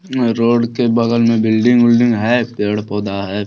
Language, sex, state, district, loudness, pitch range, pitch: Hindi, male, Bihar, Bhagalpur, -14 LUFS, 105-120 Hz, 115 Hz